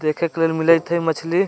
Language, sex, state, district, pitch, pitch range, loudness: Bajjika, male, Bihar, Vaishali, 165 Hz, 160-170 Hz, -19 LUFS